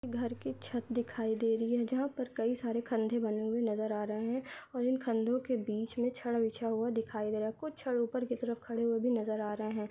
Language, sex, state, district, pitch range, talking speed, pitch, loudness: Hindi, female, Maharashtra, Sindhudurg, 220-245 Hz, 205 wpm, 230 Hz, -35 LUFS